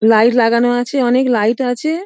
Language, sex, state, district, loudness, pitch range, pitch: Bengali, female, West Bengal, Dakshin Dinajpur, -14 LUFS, 230-260 Hz, 245 Hz